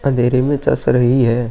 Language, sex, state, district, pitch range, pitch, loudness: Hindi, male, Uttar Pradesh, Muzaffarnagar, 120-135 Hz, 125 Hz, -15 LUFS